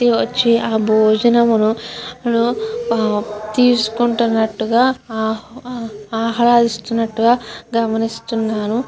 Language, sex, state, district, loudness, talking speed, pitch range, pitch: Telugu, female, Andhra Pradesh, Guntur, -17 LUFS, 55 wpm, 220-235 Hz, 230 Hz